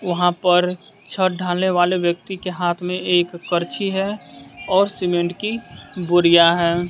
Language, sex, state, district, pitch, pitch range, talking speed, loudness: Hindi, male, Bihar, West Champaran, 180 Hz, 175-185 Hz, 145 wpm, -19 LUFS